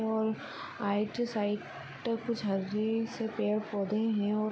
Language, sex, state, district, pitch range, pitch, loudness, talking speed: Hindi, female, Chhattisgarh, Sarguja, 210-225 Hz, 215 Hz, -33 LUFS, 130 wpm